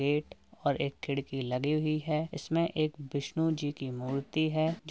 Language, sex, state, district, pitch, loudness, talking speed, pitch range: Hindi, male, Uttar Pradesh, Jalaun, 150 Hz, -32 LUFS, 195 wpm, 140-155 Hz